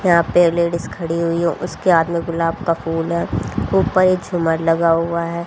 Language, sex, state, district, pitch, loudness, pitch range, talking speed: Hindi, female, Haryana, Rohtak, 170 Hz, -18 LUFS, 165-170 Hz, 210 wpm